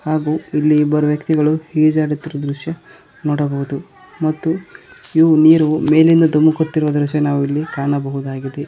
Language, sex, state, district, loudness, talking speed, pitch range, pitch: Kannada, male, Karnataka, Koppal, -16 LUFS, 110 wpm, 145-160 Hz, 155 Hz